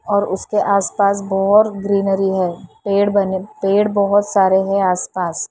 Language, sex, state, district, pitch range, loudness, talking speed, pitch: Hindi, female, Maharashtra, Mumbai Suburban, 190-200 Hz, -16 LUFS, 150 wpm, 200 Hz